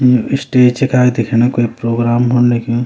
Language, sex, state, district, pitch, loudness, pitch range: Garhwali, male, Uttarakhand, Uttarkashi, 120 Hz, -13 LUFS, 120-125 Hz